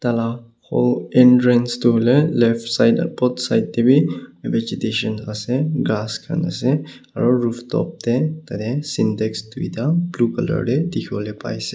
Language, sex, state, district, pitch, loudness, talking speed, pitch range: Nagamese, male, Nagaland, Kohima, 120 Hz, -19 LUFS, 160 wpm, 110-145 Hz